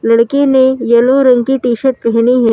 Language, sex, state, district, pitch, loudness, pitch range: Hindi, female, Madhya Pradesh, Bhopal, 250 Hz, -11 LUFS, 235-265 Hz